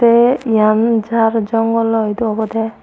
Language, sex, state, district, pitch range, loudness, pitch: Chakma, female, Tripura, Unakoti, 220-230 Hz, -15 LUFS, 225 Hz